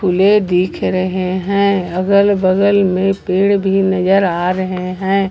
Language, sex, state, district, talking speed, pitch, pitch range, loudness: Hindi, female, Jharkhand, Garhwa, 135 wpm, 190 Hz, 185-195 Hz, -14 LUFS